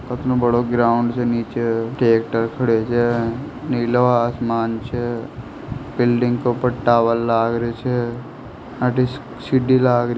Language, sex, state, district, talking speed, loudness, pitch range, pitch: Hindi, male, Rajasthan, Nagaur, 135 wpm, -19 LUFS, 115-125 Hz, 120 Hz